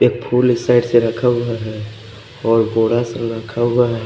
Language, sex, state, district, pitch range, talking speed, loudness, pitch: Hindi, male, Odisha, Khordha, 115-120 Hz, 205 wpm, -17 LUFS, 115 Hz